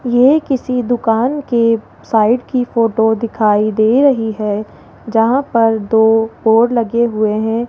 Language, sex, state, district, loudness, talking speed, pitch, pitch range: Hindi, female, Rajasthan, Jaipur, -14 LUFS, 140 wpm, 230 Hz, 220-245 Hz